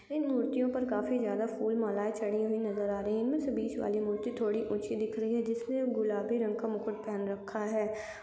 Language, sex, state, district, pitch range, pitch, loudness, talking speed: Hindi, female, Chhattisgarh, Kabirdham, 210-235 Hz, 220 Hz, -33 LUFS, 235 wpm